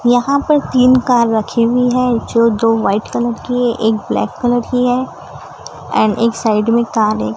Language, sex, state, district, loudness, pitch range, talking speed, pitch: Hindi, female, Maharashtra, Gondia, -14 LUFS, 225-245 Hz, 195 wpm, 235 Hz